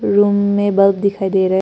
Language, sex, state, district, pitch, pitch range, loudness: Hindi, female, Arunachal Pradesh, Papum Pare, 200 Hz, 195-205 Hz, -15 LUFS